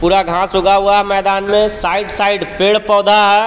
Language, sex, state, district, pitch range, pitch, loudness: Hindi, male, Jharkhand, Palamu, 195-205 Hz, 200 Hz, -13 LUFS